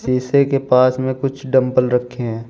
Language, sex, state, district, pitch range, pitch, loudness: Hindi, male, Uttar Pradesh, Shamli, 125-135 Hz, 130 Hz, -17 LUFS